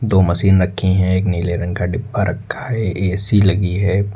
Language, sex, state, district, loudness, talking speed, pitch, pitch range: Hindi, male, Uttar Pradesh, Lucknow, -17 LUFS, 200 wpm, 95 Hz, 90-100 Hz